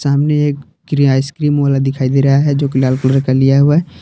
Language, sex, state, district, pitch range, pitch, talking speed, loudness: Hindi, male, Jharkhand, Palamu, 135-145 Hz, 140 Hz, 240 wpm, -13 LUFS